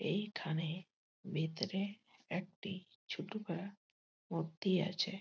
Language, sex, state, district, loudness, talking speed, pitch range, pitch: Bengali, male, West Bengal, Malda, -41 LUFS, 80 wpm, 170-200 Hz, 185 Hz